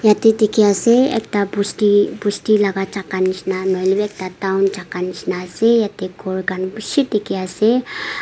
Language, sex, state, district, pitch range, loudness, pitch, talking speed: Nagamese, female, Nagaland, Kohima, 190-215 Hz, -18 LUFS, 200 Hz, 160 wpm